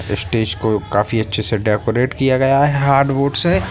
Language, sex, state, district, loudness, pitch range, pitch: Hindi, male, Bihar, Sitamarhi, -16 LUFS, 105-135 Hz, 115 Hz